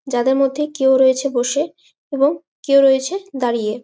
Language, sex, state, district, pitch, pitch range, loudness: Bengali, female, West Bengal, Malda, 275 Hz, 260-290 Hz, -17 LUFS